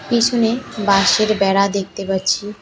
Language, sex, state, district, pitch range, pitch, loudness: Bengali, female, West Bengal, Cooch Behar, 195-225 Hz, 200 Hz, -17 LUFS